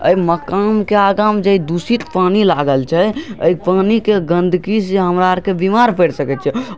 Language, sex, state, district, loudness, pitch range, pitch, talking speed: Maithili, male, Bihar, Darbhanga, -14 LUFS, 175-210 Hz, 190 Hz, 195 wpm